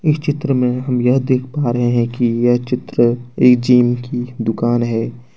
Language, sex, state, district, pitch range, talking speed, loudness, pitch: Hindi, male, Jharkhand, Deoghar, 120-130 Hz, 190 wpm, -16 LUFS, 125 Hz